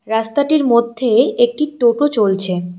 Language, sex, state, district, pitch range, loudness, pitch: Bengali, female, West Bengal, Cooch Behar, 220-285 Hz, -15 LUFS, 235 Hz